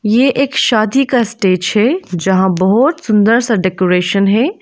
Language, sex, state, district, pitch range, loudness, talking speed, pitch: Hindi, female, Arunachal Pradesh, Lower Dibang Valley, 190-255 Hz, -13 LUFS, 155 wpm, 215 Hz